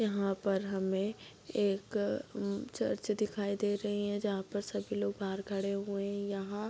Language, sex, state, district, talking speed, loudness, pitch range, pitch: Hindi, female, Bihar, Bhagalpur, 180 wpm, -35 LUFS, 195-205 Hz, 200 Hz